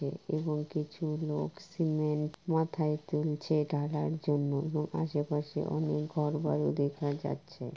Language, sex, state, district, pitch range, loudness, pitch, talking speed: Bengali, female, West Bengal, Kolkata, 150-155 Hz, -33 LUFS, 150 Hz, 125 wpm